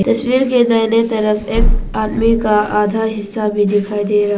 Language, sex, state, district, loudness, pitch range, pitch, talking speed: Hindi, female, Arunachal Pradesh, Papum Pare, -15 LUFS, 210-230 Hz, 215 Hz, 180 wpm